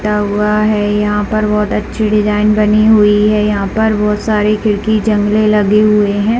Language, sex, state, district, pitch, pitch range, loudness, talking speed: Hindi, female, Chhattisgarh, Bilaspur, 210 Hz, 210-215 Hz, -12 LUFS, 185 wpm